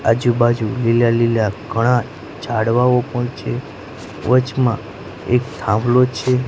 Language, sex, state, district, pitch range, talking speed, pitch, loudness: Gujarati, male, Gujarat, Gandhinagar, 115-125 Hz, 110 wpm, 120 Hz, -17 LUFS